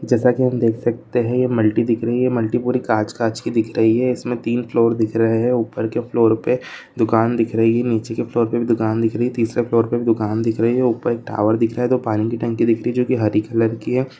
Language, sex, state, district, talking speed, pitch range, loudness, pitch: Hindi, male, Jharkhand, Sahebganj, 280 wpm, 115-120 Hz, -19 LUFS, 115 Hz